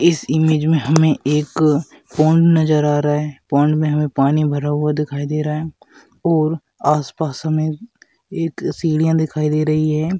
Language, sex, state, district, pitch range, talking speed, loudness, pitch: Hindi, male, Rajasthan, Churu, 150-160 Hz, 170 wpm, -17 LUFS, 155 Hz